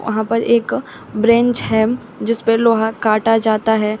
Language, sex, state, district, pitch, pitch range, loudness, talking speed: Hindi, female, Uttar Pradesh, Shamli, 225 Hz, 220-230 Hz, -16 LUFS, 165 wpm